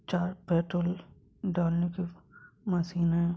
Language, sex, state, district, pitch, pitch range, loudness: Hindi, male, Jharkhand, Sahebganj, 175 Hz, 170-180 Hz, -31 LUFS